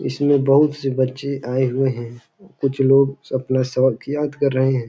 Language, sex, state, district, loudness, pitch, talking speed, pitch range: Hindi, male, Uttar Pradesh, Ghazipur, -19 LUFS, 135 Hz, 185 wpm, 130-140 Hz